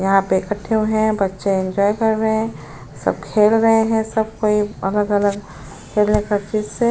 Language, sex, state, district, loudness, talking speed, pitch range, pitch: Hindi, female, Uttar Pradesh, Jyotiba Phule Nagar, -18 LUFS, 175 wpm, 200-220 Hz, 210 Hz